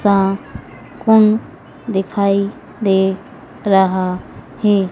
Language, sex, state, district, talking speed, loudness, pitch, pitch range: Hindi, female, Madhya Pradesh, Dhar, 75 wpm, -16 LUFS, 195 Hz, 190-210 Hz